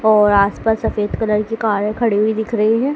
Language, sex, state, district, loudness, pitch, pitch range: Hindi, female, Madhya Pradesh, Dhar, -17 LUFS, 215 Hz, 210-225 Hz